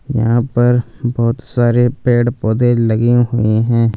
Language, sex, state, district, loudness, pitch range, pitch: Hindi, male, Punjab, Fazilka, -14 LUFS, 115-120 Hz, 120 Hz